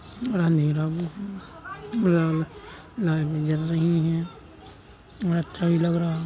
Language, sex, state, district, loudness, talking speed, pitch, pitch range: Hindi, male, Uttar Pradesh, Hamirpur, -25 LUFS, 135 wpm, 165 Hz, 160-175 Hz